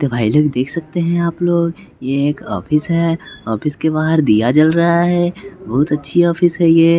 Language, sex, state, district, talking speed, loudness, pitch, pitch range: Hindi, male, Bihar, West Champaran, 205 wpm, -15 LUFS, 165 Hz, 150-170 Hz